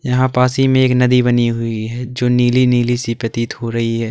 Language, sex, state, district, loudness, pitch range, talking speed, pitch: Hindi, male, Uttar Pradesh, Lalitpur, -15 LUFS, 115-125 Hz, 250 wpm, 120 Hz